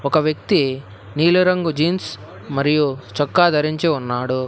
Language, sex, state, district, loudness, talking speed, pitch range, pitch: Telugu, male, Telangana, Hyderabad, -18 LUFS, 120 wpm, 130-160 Hz, 145 Hz